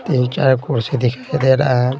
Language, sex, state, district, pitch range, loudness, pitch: Hindi, male, Bihar, Patna, 125-135 Hz, -17 LUFS, 130 Hz